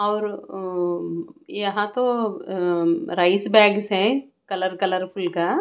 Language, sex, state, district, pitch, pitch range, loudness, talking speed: Hindi, female, Bihar, Katihar, 195 Hz, 180-210 Hz, -22 LUFS, 120 wpm